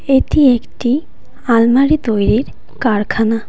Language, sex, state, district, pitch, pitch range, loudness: Bengali, female, West Bengal, Cooch Behar, 240 Hz, 225-270 Hz, -14 LUFS